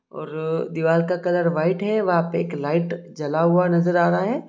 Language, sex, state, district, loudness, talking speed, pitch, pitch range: Hindi, male, Jharkhand, Jamtara, -21 LUFS, 215 wpm, 170 Hz, 160-175 Hz